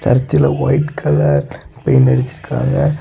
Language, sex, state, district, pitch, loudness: Tamil, male, Tamil Nadu, Kanyakumari, 130 Hz, -15 LUFS